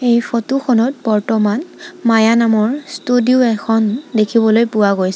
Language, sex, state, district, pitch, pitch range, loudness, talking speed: Assamese, female, Assam, Sonitpur, 230 Hz, 220-250 Hz, -15 LUFS, 130 wpm